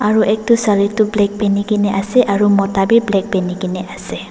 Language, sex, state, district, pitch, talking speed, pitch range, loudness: Nagamese, female, Nagaland, Dimapur, 205 Hz, 210 wpm, 195-215 Hz, -15 LUFS